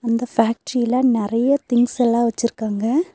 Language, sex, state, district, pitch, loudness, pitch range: Tamil, female, Tamil Nadu, Nilgiris, 235 Hz, -19 LUFS, 230-255 Hz